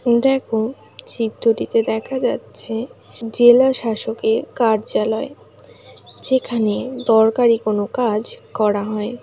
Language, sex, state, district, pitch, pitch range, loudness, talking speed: Bengali, female, West Bengal, Jalpaiguri, 230 Hz, 220-245 Hz, -18 LUFS, 70 wpm